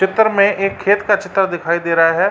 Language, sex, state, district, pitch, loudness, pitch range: Hindi, male, Uttar Pradesh, Jalaun, 195 Hz, -15 LUFS, 175-205 Hz